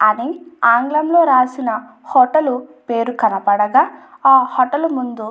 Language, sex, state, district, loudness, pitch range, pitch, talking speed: Telugu, female, Andhra Pradesh, Anantapur, -16 LUFS, 230-290 Hz, 255 Hz, 115 wpm